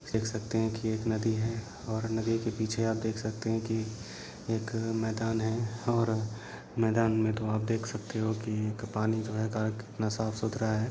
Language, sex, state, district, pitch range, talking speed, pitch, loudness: Hindi, male, Uttar Pradesh, Deoria, 110-115 Hz, 190 wpm, 110 Hz, -32 LUFS